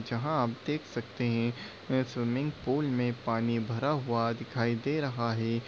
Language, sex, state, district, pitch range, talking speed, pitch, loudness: Hindi, male, Uttar Pradesh, Deoria, 115-130 Hz, 170 wpm, 120 Hz, -31 LUFS